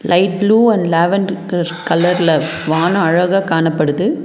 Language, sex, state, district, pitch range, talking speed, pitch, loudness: Tamil, female, Tamil Nadu, Nilgiris, 165-190 Hz, 125 wpm, 175 Hz, -14 LUFS